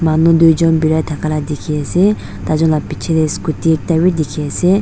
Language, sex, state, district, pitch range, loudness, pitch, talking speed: Nagamese, female, Nagaland, Dimapur, 155-165 Hz, -15 LUFS, 160 Hz, 210 wpm